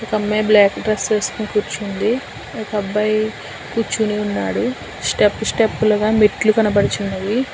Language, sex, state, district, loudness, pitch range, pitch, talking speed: Telugu, female, Telangana, Hyderabad, -18 LUFS, 210-220 Hz, 215 Hz, 120 wpm